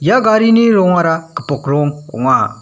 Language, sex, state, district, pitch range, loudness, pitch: Garo, male, Meghalaya, West Garo Hills, 145-215 Hz, -13 LUFS, 165 Hz